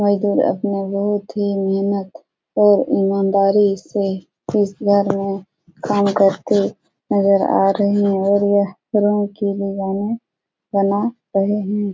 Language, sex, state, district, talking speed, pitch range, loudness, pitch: Hindi, male, Bihar, Supaul, 120 wpm, 195-205 Hz, -18 LUFS, 200 Hz